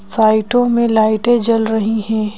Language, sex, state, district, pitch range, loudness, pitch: Hindi, female, Madhya Pradesh, Bhopal, 215-235 Hz, -14 LUFS, 220 Hz